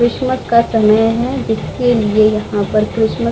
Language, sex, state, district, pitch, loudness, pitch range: Hindi, female, Bihar, Vaishali, 225 Hz, -14 LUFS, 215-240 Hz